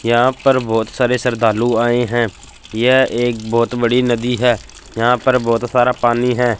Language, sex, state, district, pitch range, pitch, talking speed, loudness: Hindi, male, Punjab, Fazilka, 115-125 Hz, 120 Hz, 175 wpm, -16 LUFS